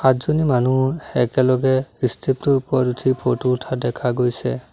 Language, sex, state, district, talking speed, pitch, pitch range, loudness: Assamese, male, Assam, Sonitpur, 140 wpm, 130 Hz, 125-135 Hz, -20 LUFS